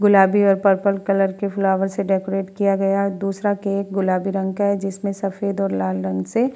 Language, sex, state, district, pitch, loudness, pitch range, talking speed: Hindi, female, Bihar, Vaishali, 195 Hz, -20 LUFS, 195-200 Hz, 220 wpm